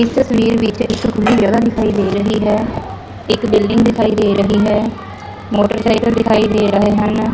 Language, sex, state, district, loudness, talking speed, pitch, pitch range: Punjabi, female, Punjab, Fazilka, -14 LUFS, 170 wpm, 220 Hz, 210-230 Hz